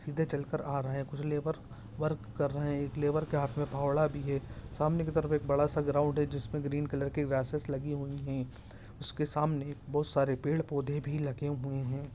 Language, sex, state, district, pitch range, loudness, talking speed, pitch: Hindi, male, Jharkhand, Sahebganj, 140-150 Hz, -33 LUFS, 225 wpm, 145 Hz